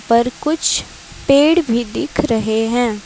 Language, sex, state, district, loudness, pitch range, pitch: Hindi, female, Karnataka, Bangalore, -16 LUFS, 225-285 Hz, 240 Hz